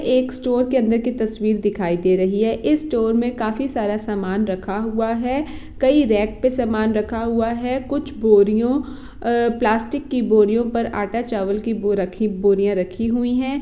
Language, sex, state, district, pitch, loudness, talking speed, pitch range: Hindi, female, Bihar, Jahanabad, 225 Hz, -20 LUFS, 190 wpm, 210-250 Hz